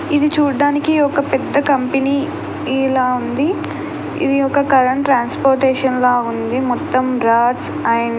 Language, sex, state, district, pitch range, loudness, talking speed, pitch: Telugu, female, Andhra Pradesh, Krishna, 250-285 Hz, -16 LUFS, 125 wpm, 270 Hz